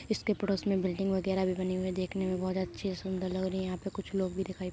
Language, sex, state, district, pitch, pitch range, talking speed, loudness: Hindi, female, Uttar Pradesh, Gorakhpur, 190 Hz, 185-195 Hz, 305 wpm, -33 LUFS